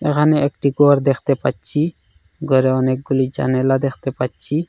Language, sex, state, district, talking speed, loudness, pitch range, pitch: Bengali, male, Assam, Hailakandi, 130 wpm, -18 LUFS, 130-150 Hz, 135 Hz